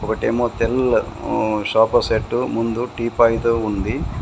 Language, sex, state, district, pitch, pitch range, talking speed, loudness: Telugu, male, Telangana, Komaram Bheem, 115 Hz, 110-120 Hz, 100 wpm, -19 LUFS